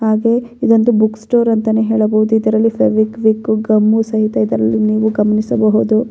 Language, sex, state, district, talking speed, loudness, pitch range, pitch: Kannada, female, Karnataka, Bellary, 130 wpm, -14 LUFS, 215-225 Hz, 220 Hz